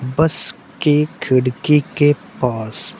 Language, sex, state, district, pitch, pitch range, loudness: Hindi, male, Uttar Pradesh, Shamli, 145 Hz, 125-150 Hz, -18 LUFS